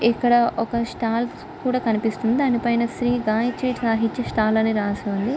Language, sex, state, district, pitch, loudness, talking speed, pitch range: Telugu, female, Andhra Pradesh, Krishna, 235 Hz, -22 LUFS, 145 wpm, 220-245 Hz